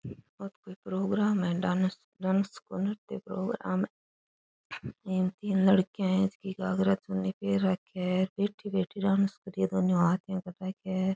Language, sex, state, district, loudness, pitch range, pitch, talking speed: Rajasthani, female, Rajasthan, Churu, -30 LUFS, 180-195 Hz, 190 Hz, 175 wpm